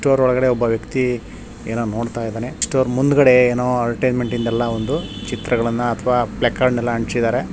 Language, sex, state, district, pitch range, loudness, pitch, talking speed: Kannada, male, Karnataka, Shimoga, 115-125 Hz, -19 LUFS, 120 Hz, 160 wpm